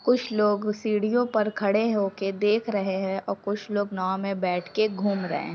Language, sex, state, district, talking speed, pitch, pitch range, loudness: Hindi, female, Chhattisgarh, Sukma, 205 wpm, 205 Hz, 195-215 Hz, -26 LUFS